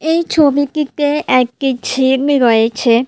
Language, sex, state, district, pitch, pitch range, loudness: Bengali, female, Tripura, West Tripura, 270 Hz, 250-295 Hz, -14 LUFS